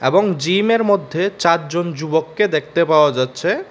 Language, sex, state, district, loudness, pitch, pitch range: Bengali, male, Tripura, West Tripura, -17 LUFS, 170 Hz, 155-195 Hz